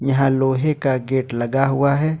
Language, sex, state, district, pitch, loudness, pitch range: Hindi, male, Jharkhand, Ranchi, 135 Hz, -19 LUFS, 130-140 Hz